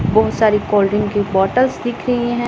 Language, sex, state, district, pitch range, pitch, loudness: Hindi, female, Punjab, Pathankot, 205-240 Hz, 215 Hz, -16 LUFS